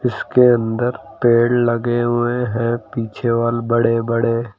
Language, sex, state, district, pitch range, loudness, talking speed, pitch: Hindi, male, Uttar Pradesh, Lucknow, 115-120 Hz, -17 LUFS, 130 wpm, 120 Hz